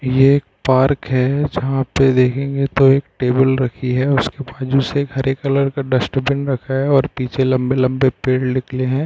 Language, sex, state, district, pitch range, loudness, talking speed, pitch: Hindi, male, Chhattisgarh, Bilaspur, 130-140 Hz, -17 LUFS, 190 wpm, 135 Hz